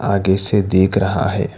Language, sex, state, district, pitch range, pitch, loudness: Hindi, male, Karnataka, Bangalore, 95-100 Hz, 100 Hz, -16 LUFS